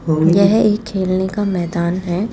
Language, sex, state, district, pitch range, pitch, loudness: Hindi, female, Rajasthan, Jaipur, 175-205 Hz, 190 Hz, -16 LUFS